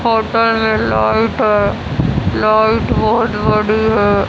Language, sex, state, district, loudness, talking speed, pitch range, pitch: Hindi, female, Haryana, Rohtak, -14 LUFS, 110 wpm, 205-225 Hz, 220 Hz